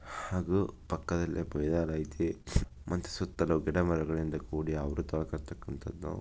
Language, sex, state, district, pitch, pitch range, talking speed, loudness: Kannada, male, Karnataka, Shimoga, 85 Hz, 80-90 Hz, 85 wpm, -34 LUFS